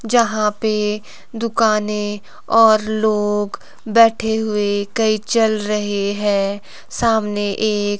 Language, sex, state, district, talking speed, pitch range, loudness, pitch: Hindi, female, Himachal Pradesh, Shimla, 95 wpm, 205-220 Hz, -18 LUFS, 210 Hz